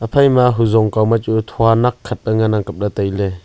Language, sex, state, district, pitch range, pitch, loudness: Wancho, male, Arunachal Pradesh, Longding, 105-115 Hz, 110 Hz, -15 LUFS